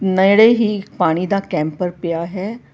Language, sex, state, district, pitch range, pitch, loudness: Punjabi, female, Karnataka, Bangalore, 175-205 Hz, 190 Hz, -17 LUFS